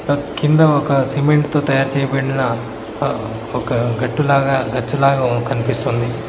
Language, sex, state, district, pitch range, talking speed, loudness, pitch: Telugu, male, Telangana, Mahabubabad, 120-140 Hz, 115 wpm, -17 LUFS, 135 Hz